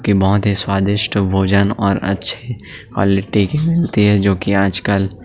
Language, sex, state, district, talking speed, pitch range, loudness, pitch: Hindi, male, Chhattisgarh, Sukma, 135 wpm, 95-105 Hz, -15 LUFS, 100 Hz